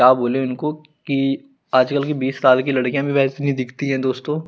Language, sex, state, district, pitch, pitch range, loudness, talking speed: Hindi, male, Chandigarh, Chandigarh, 135 Hz, 130-145 Hz, -19 LUFS, 230 wpm